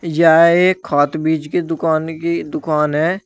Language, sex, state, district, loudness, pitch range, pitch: Hindi, male, Uttar Pradesh, Shamli, -16 LUFS, 155-170 Hz, 160 Hz